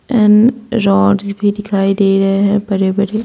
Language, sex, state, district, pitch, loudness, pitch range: Hindi, female, Bihar, Saharsa, 205 Hz, -13 LUFS, 195-215 Hz